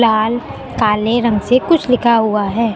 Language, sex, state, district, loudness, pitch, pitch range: Hindi, female, Uttar Pradesh, Lucknow, -14 LUFS, 230 Hz, 215-240 Hz